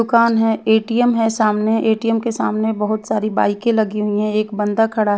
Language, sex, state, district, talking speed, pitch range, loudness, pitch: Hindi, female, Haryana, Charkhi Dadri, 210 wpm, 215-225 Hz, -17 LUFS, 220 Hz